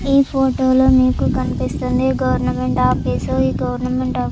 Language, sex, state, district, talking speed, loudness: Telugu, female, Andhra Pradesh, Chittoor, 155 wpm, -17 LUFS